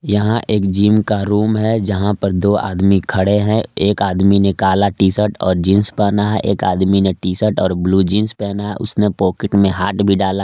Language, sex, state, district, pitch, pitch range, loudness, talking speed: Hindi, male, Jharkhand, Palamu, 100 Hz, 95-105 Hz, -15 LUFS, 220 wpm